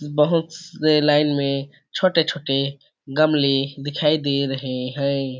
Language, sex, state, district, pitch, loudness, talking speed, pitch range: Awadhi, male, Chhattisgarh, Balrampur, 145 Hz, -21 LUFS, 120 wpm, 140-155 Hz